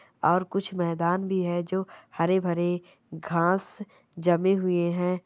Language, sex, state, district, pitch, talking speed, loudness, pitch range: Hindi, female, Bihar, Jamui, 175 Hz, 125 wpm, -26 LUFS, 175-185 Hz